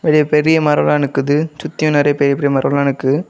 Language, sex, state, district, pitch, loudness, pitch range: Tamil, male, Tamil Nadu, Kanyakumari, 145 Hz, -15 LUFS, 140-150 Hz